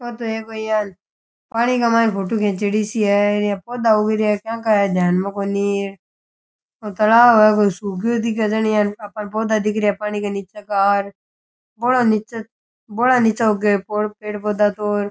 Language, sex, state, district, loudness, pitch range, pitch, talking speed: Rajasthani, male, Rajasthan, Churu, -18 LUFS, 205-225 Hz, 210 Hz, 195 wpm